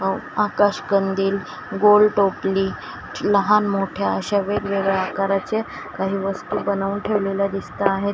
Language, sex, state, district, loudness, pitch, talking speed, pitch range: Marathi, female, Maharashtra, Washim, -21 LUFS, 200 Hz, 110 wpm, 195-205 Hz